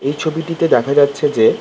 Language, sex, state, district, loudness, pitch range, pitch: Bengali, male, West Bengal, Kolkata, -15 LUFS, 140-165 Hz, 155 Hz